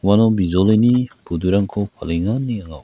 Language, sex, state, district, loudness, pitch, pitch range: Garo, male, Meghalaya, West Garo Hills, -18 LUFS, 100 Hz, 90-115 Hz